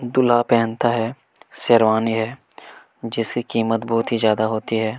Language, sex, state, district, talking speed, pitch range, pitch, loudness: Hindi, male, Chhattisgarh, Kabirdham, 145 wpm, 110-120 Hz, 115 Hz, -20 LUFS